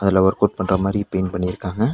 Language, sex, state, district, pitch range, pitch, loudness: Tamil, male, Tamil Nadu, Nilgiris, 95-100 Hz, 95 Hz, -20 LUFS